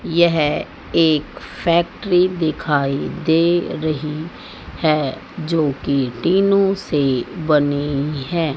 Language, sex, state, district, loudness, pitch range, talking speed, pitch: Hindi, female, Haryana, Jhajjar, -19 LUFS, 145-170 Hz, 90 wpm, 160 Hz